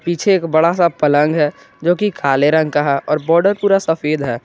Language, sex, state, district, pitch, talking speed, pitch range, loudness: Hindi, male, Jharkhand, Garhwa, 160 Hz, 200 wpm, 145-175 Hz, -15 LUFS